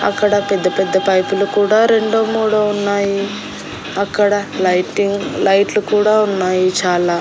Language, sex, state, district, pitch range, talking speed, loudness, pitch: Telugu, female, Andhra Pradesh, Annamaya, 190-210 Hz, 115 wpm, -15 LUFS, 200 Hz